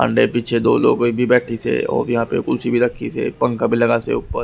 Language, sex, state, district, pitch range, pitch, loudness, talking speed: Hindi, male, Haryana, Rohtak, 115-120 Hz, 120 Hz, -18 LUFS, 255 wpm